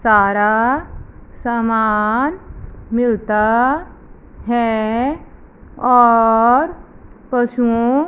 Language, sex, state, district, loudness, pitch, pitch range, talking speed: Hindi, female, Punjab, Fazilka, -16 LUFS, 235 Hz, 220-250 Hz, 45 wpm